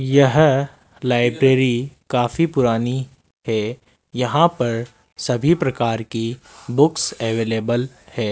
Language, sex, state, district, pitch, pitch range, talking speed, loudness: Hindi, male, Rajasthan, Jaipur, 125 Hz, 115-135 Hz, 95 wpm, -19 LUFS